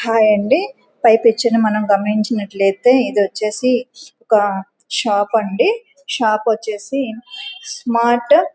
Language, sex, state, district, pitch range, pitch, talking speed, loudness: Telugu, female, Andhra Pradesh, Guntur, 210-265 Hz, 225 Hz, 105 wpm, -16 LUFS